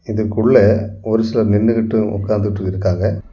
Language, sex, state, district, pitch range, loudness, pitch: Tamil, male, Tamil Nadu, Kanyakumari, 100-110 Hz, -16 LUFS, 105 Hz